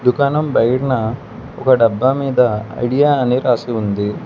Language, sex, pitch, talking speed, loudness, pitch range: Telugu, male, 125 Hz, 125 wpm, -16 LUFS, 115-135 Hz